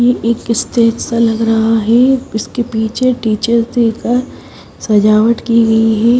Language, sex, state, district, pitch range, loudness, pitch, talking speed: Hindi, female, Odisha, Sambalpur, 225-240 Hz, -13 LUFS, 230 Hz, 155 wpm